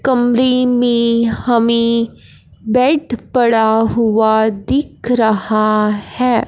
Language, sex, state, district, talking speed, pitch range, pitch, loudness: Hindi, male, Punjab, Fazilka, 85 wpm, 220-245 Hz, 235 Hz, -14 LUFS